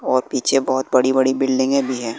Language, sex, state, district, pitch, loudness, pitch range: Hindi, male, Bihar, West Champaran, 130 Hz, -18 LUFS, 130-135 Hz